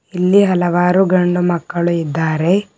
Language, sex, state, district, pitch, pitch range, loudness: Kannada, female, Karnataka, Bidar, 175 Hz, 170-185 Hz, -15 LUFS